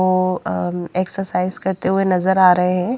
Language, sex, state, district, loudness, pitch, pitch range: Hindi, female, Haryana, Jhajjar, -18 LUFS, 185 Hz, 180-190 Hz